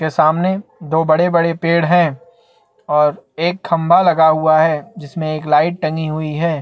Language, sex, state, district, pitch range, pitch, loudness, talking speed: Hindi, male, Chhattisgarh, Bastar, 155-170 Hz, 160 Hz, -15 LUFS, 155 wpm